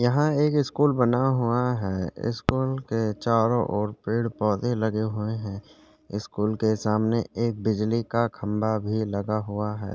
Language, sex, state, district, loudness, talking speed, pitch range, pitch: Hindi, male, Chhattisgarh, Sukma, -25 LUFS, 165 wpm, 105-120 Hz, 110 Hz